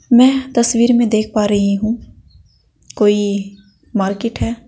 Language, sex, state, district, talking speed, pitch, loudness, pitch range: Hindi, female, Uttar Pradesh, Saharanpur, 130 wpm, 220 Hz, -15 LUFS, 205-235 Hz